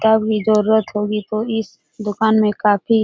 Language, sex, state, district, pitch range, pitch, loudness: Hindi, female, Bihar, Jahanabad, 210-220 Hz, 215 Hz, -18 LUFS